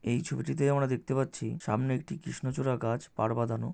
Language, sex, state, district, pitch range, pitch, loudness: Bengali, male, West Bengal, North 24 Parganas, 115-135 Hz, 130 Hz, -31 LUFS